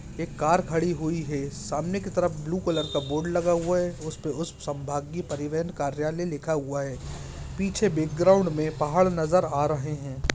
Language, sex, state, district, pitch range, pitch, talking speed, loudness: Hindi, male, Uttarakhand, Uttarkashi, 150-175 Hz, 160 Hz, 185 wpm, -27 LUFS